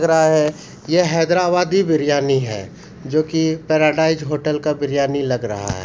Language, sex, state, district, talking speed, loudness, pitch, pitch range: Hindi, male, Bihar, Supaul, 135 wpm, -18 LUFS, 155 Hz, 140-160 Hz